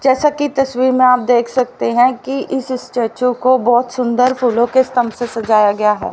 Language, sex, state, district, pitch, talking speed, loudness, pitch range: Hindi, female, Haryana, Rohtak, 250 Hz, 205 wpm, -15 LUFS, 240-260 Hz